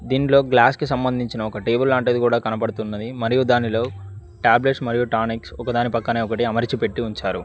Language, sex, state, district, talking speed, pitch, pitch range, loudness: Telugu, male, Telangana, Mahabubabad, 160 wpm, 120 Hz, 110-125 Hz, -20 LUFS